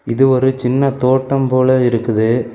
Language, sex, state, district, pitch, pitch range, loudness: Tamil, male, Tamil Nadu, Kanyakumari, 130 Hz, 120-130 Hz, -14 LUFS